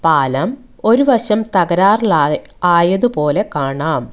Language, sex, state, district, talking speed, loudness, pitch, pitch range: Malayalam, female, Kerala, Kollam, 85 wpm, -15 LUFS, 180 Hz, 150-220 Hz